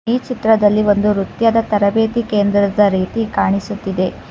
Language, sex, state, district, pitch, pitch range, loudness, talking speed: Kannada, female, Karnataka, Bangalore, 210 Hz, 200-225 Hz, -16 LUFS, 110 wpm